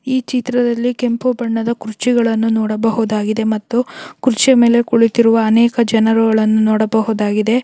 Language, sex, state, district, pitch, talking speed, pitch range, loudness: Kannada, female, Karnataka, Belgaum, 230 Hz, 100 wpm, 220-240 Hz, -15 LUFS